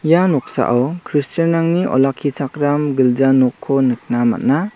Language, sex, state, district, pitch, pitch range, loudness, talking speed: Garo, male, Meghalaya, South Garo Hills, 140 Hz, 130-165 Hz, -16 LUFS, 100 wpm